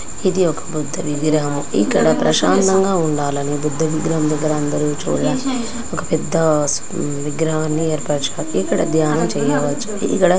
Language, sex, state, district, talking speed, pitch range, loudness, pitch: Telugu, female, Andhra Pradesh, Anantapur, 115 wpm, 150-175 Hz, -18 LUFS, 155 Hz